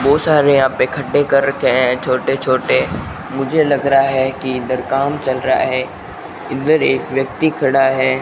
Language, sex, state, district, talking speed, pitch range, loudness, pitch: Hindi, male, Rajasthan, Bikaner, 175 wpm, 130-140 Hz, -15 LUFS, 135 Hz